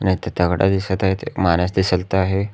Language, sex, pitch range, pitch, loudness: Marathi, male, 90-95 Hz, 95 Hz, -19 LUFS